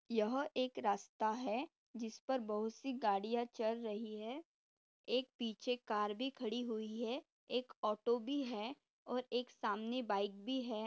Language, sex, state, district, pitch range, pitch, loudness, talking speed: Hindi, female, Maharashtra, Dhule, 215-255 Hz, 235 Hz, -41 LUFS, 155 wpm